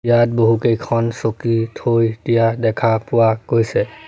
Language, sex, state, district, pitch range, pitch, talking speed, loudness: Assamese, male, Assam, Sonitpur, 115-120 Hz, 115 Hz, 115 wpm, -17 LUFS